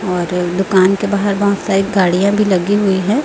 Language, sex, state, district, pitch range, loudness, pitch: Hindi, female, Chhattisgarh, Raipur, 185-200 Hz, -14 LUFS, 195 Hz